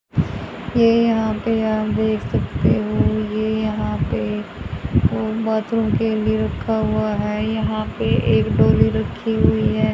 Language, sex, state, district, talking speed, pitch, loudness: Hindi, female, Haryana, Charkhi Dadri, 140 wpm, 145 Hz, -20 LUFS